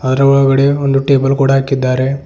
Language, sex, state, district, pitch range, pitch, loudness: Kannada, male, Karnataka, Bidar, 135-140 Hz, 135 Hz, -12 LUFS